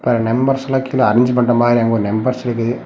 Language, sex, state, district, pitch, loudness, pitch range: Tamil, male, Tamil Nadu, Namakkal, 120 Hz, -15 LUFS, 115-130 Hz